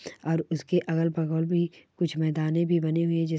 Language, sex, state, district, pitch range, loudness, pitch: Hindi, female, Bihar, Darbhanga, 160-170 Hz, -27 LUFS, 165 Hz